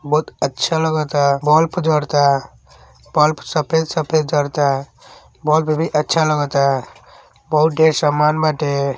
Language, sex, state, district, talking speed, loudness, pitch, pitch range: Bhojpuri, male, Uttar Pradesh, Deoria, 135 wpm, -17 LUFS, 150 Hz, 140-155 Hz